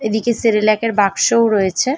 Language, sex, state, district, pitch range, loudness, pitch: Bengali, female, West Bengal, Dakshin Dinajpur, 205-230 Hz, -15 LUFS, 220 Hz